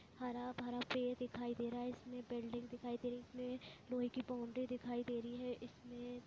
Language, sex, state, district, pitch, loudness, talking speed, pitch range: Hindi, female, Chhattisgarh, Raigarh, 245 Hz, -45 LUFS, 200 wpm, 240-250 Hz